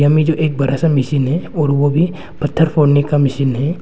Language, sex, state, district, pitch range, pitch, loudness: Hindi, male, Arunachal Pradesh, Longding, 140-160 Hz, 145 Hz, -15 LUFS